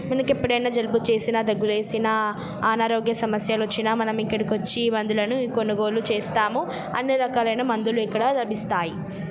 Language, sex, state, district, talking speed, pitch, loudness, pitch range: Telugu, female, Telangana, Nalgonda, 115 wpm, 225 Hz, -23 LUFS, 215-235 Hz